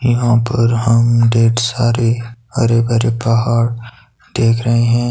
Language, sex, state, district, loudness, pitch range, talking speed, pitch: Hindi, male, Himachal Pradesh, Shimla, -14 LUFS, 115-120 Hz, 130 wpm, 115 Hz